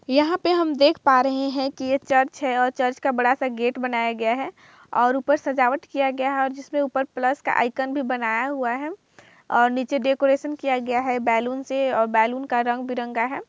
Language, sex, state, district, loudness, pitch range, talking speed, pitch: Hindi, female, Chhattisgarh, Kabirdham, -22 LUFS, 245-275 Hz, 220 wpm, 265 Hz